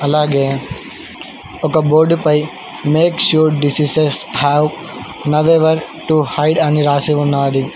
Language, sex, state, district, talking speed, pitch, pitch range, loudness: Telugu, male, Telangana, Hyderabad, 100 wpm, 150 Hz, 145-155 Hz, -14 LUFS